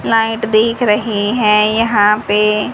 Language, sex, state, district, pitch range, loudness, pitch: Hindi, female, Haryana, Jhajjar, 210-225 Hz, -13 LUFS, 215 Hz